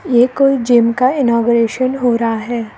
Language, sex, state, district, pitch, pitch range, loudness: Hindi, female, Arunachal Pradesh, Lower Dibang Valley, 240 Hz, 235-255 Hz, -14 LUFS